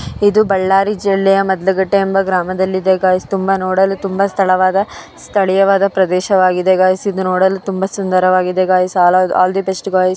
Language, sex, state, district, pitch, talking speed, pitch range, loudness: Kannada, female, Karnataka, Dharwad, 190 Hz, 145 wpm, 185-195 Hz, -14 LUFS